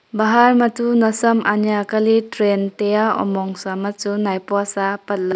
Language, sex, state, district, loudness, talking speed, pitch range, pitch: Wancho, female, Arunachal Pradesh, Longding, -18 LUFS, 190 wpm, 200-225 Hz, 205 Hz